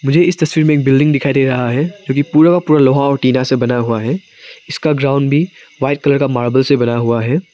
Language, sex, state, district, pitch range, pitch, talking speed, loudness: Hindi, male, Arunachal Pradesh, Papum Pare, 130-155 Hz, 140 Hz, 260 wpm, -13 LUFS